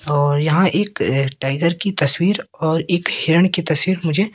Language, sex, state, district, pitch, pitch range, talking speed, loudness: Hindi, male, Madhya Pradesh, Katni, 165 Hz, 150-185 Hz, 165 wpm, -18 LUFS